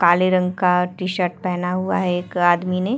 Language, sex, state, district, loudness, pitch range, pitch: Hindi, female, Uttar Pradesh, Etah, -20 LUFS, 180-185 Hz, 180 Hz